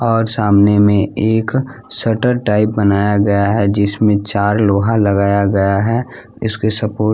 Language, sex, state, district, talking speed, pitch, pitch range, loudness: Hindi, male, Bihar, West Champaran, 150 wpm, 105 Hz, 100-110 Hz, -14 LUFS